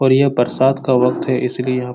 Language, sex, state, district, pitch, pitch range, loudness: Hindi, male, Bihar, Supaul, 130 Hz, 125-135 Hz, -16 LUFS